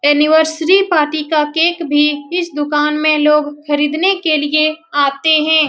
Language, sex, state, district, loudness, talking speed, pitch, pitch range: Hindi, female, Bihar, Saran, -14 LUFS, 145 wpm, 305 Hz, 295-320 Hz